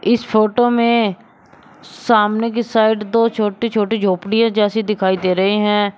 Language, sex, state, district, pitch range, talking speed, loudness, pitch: Hindi, male, Uttar Pradesh, Shamli, 210-230 Hz, 150 wpm, -16 LUFS, 220 Hz